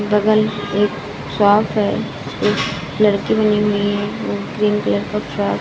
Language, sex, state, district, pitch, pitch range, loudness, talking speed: Hindi, female, Chhattisgarh, Balrampur, 205 Hz, 205-210 Hz, -18 LUFS, 170 wpm